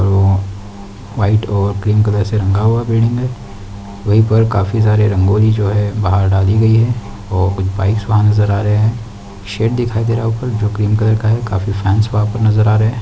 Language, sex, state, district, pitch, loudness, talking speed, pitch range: Hindi, male, Chhattisgarh, Sukma, 105 Hz, -14 LUFS, 215 wpm, 100-110 Hz